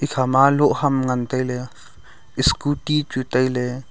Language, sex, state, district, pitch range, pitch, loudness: Wancho, male, Arunachal Pradesh, Longding, 125-145 Hz, 130 Hz, -20 LUFS